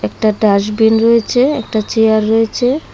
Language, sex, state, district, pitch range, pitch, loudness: Bengali, female, Assam, Hailakandi, 215-235 Hz, 220 Hz, -13 LUFS